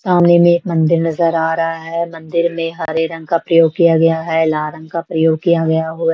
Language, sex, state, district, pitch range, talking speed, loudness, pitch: Hindi, female, Maharashtra, Washim, 160-170 Hz, 225 wpm, -15 LUFS, 165 Hz